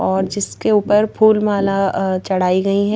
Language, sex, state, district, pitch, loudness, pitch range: Hindi, female, Madhya Pradesh, Bhopal, 200 Hz, -16 LUFS, 190-210 Hz